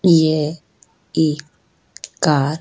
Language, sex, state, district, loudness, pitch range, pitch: Hindi, female, Uttar Pradesh, Hamirpur, -18 LUFS, 150-160 Hz, 150 Hz